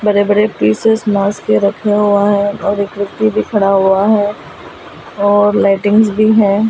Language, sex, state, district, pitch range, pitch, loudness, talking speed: Hindi, female, Delhi, New Delhi, 200-210 Hz, 205 Hz, -12 LUFS, 150 wpm